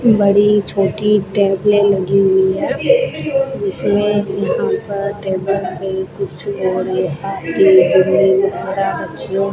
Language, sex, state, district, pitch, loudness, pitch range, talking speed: Hindi, female, Rajasthan, Bikaner, 195 Hz, -15 LUFS, 190-205 Hz, 90 wpm